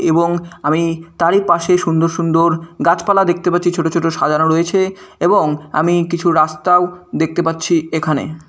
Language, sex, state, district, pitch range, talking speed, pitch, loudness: Bengali, male, West Bengal, Malda, 160-175 Hz, 140 wpm, 170 Hz, -15 LUFS